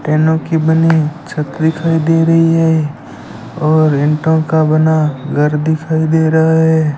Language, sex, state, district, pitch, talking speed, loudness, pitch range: Hindi, male, Rajasthan, Bikaner, 160 Hz, 145 wpm, -13 LUFS, 150-160 Hz